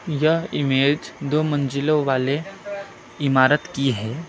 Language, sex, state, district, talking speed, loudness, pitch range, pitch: Hindi, male, West Bengal, Alipurduar, 110 wpm, -21 LUFS, 135-155 Hz, 145 Hz